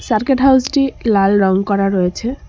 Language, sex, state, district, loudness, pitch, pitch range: Bengali, female, West Bengal, Cooch Behar, -14 LUFS, 215 Hz, 195-260 Hz